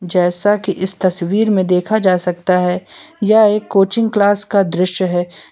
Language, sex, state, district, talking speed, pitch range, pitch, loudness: Hindi, male, Uttar Pradesh, Lucknow, 175 wpm, 180-205 Hz, 195 Hz, -14 LUFS